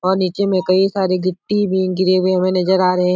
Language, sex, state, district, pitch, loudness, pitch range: Hindi, male, Bihar, Supaul, 185 Hz, -16 LUFS, 185-190 Hz